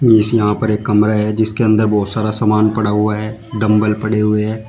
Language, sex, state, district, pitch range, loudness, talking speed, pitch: Hindi, male, Uttar Pradesh, Shamli, 105-110 Hz, -15 LUFS, 230 wpm, 110 Hz